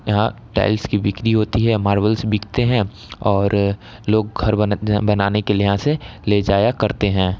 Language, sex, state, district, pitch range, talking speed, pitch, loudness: Maithili, male, Bihar, Samastipur, 100-110 Hz, 195 wpm, 105 Hz, -18 LUFS